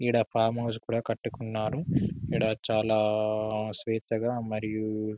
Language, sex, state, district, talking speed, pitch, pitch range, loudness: Telugu, male, Telangana, Karimnagar, 105 wpm, 110 Hz, 110-115 Hz, -29 LUFS